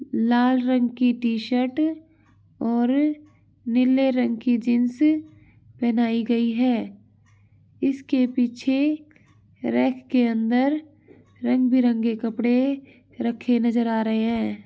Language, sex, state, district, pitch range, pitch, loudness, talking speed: Hindi, female, Uttar Pradesh, Varanasi, 235-265 Hz, 245 Hz, -22 LUFS, 105 wpm